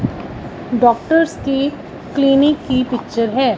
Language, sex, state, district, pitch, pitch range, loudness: Hindi, female, Punjab, Fazilka, 270 Hz, 245-285 Hz, -16 LUFS